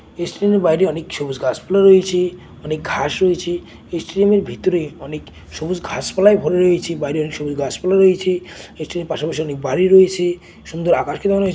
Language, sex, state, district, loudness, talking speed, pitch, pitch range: Bengali, male, West Bengal, Dakshin Dinajpur, -17 LUFS, 180 wpm, 175 Hz, 155-185 Hz